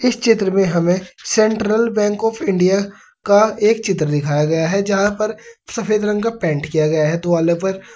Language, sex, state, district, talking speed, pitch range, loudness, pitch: Hindi, male, Uttar Pradesh, Saharanpur, 190 wpm, 170-215 Hz, -17 LUFS, 200 Hz